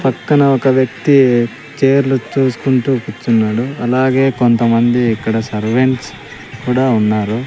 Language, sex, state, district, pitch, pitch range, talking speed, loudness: Telugu, male, Andhra Pradesh, Sri Satya Sai, 125 Hz, 115-135 Hz, 95 wpm, -14 LUFS